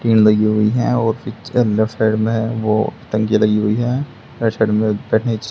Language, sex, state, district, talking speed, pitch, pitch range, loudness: Hindi, male, Haryana, Charkhi Dadri, 185 wpm, 110 Hz, 110-115 Hz, -17 LUFS